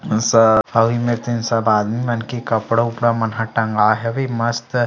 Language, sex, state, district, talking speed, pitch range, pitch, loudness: Chhattisgarhi, male, Chhattisgarh, Sarguja, 195 wpm, 115-120 Hz, 115 Hz, -18 LUFS